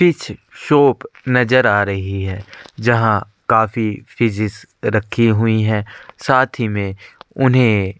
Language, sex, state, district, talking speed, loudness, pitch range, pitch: Hindi, male, Chhattisgarh, Korba, 125 wpm, -17 LUFS, 105-125 Hz, 110 Hz